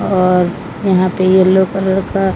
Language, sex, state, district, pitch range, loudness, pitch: Hindi, female, Odisha, Malkangiri, 185-190 Hz, -13 LUFS, 190 Hz